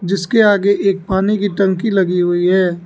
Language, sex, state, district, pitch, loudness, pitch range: Hindi, male, Arunachal Pradesh, Lower Dibang Valley, 190 Hz, -15 LUFS, 185-205 Hz